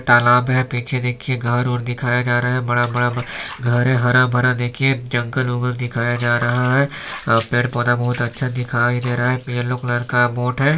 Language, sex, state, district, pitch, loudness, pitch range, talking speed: Hindi, male, Chhattisgarh, Balrampur, 125 Hz, -18 LUFS, 120-125 Hz, 230 wpm